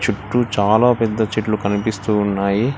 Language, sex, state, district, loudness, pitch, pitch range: Telugu, male, Telangana, Hyderabad, -18 LUFS, 110 Hz, 100-115 Hz